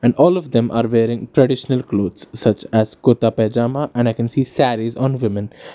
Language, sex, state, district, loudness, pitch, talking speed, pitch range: English, male, Karnataka, Bangalore, -18 LUFS, 120 Hz, 200 wpm, 115-130 Hz